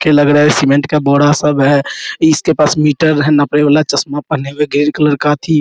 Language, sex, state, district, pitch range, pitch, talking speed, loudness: Hindi, male, Bihar, Araria, 145-150 Hz, 150 Hz, 255 wpm, -12 LUFS